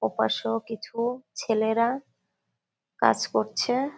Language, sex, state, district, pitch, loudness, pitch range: Bengali, female, West Bengal, Kolkata, 230 Hz, -27 LUFS, 220-250 Hz